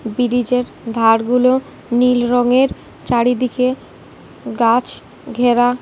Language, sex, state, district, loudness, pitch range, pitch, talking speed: Bengali, female, West Bengal, Kolkata, -16 LUFS, 240-250 Hz, 245 Hz, 80 wpm